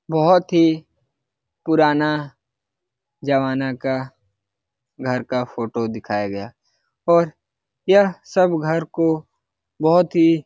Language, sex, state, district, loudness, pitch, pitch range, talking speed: Hindi, male, Bihar, Lakhisarai, -19 LUFS, 135 Hz, 120-165 Hz, 105 wpm